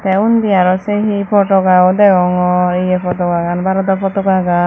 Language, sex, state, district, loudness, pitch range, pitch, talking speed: Chakma, female, Tripura, Dhalai, -13 LUFS, 180-195 Hz, 190 Hz, 140 wpm